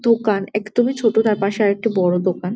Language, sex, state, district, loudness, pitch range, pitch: Bengali, female, West Bengal, Jalpaiguri, -18 LUFS, 195-225 Hz, 210 Hz